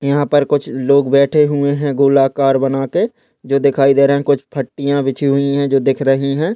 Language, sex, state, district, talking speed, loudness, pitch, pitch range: Hindi, male, Chhattisgarh, Bastar, 220 wpm, -14 LUFS, 140 Hz, 135-145 Hz